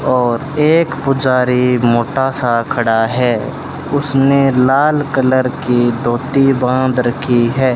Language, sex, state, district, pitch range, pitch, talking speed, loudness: Hindi, male, Rajasthan, Bikaner, 120-135 Hz, 130 Hz, 115 wpm, -14 LUFS